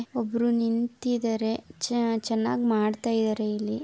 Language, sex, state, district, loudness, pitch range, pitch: Kannada, female, Karnataka, Raichur, -27 LUFS, 220-235 Hz, 230 Hz